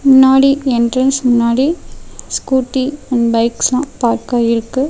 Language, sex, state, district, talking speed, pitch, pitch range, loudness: Tamil, female, Tamil Nadu, Namakkal, 85 wpm, 260 Hz, 235-270 Hz, -14 LUFS